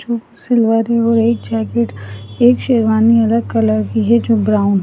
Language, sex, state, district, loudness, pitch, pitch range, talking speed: Hindi, female, Maharashtra, Solapur, -14 LUFS, 225 Hz, 205-235 Hz, 135 wpm